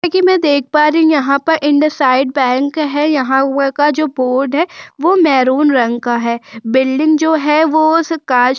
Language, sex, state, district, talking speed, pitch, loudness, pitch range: Hindi, female, Uttar Pradesh, Budaun, 210 wpm, 290 Hz, -13 LUFS, 260-310 Hz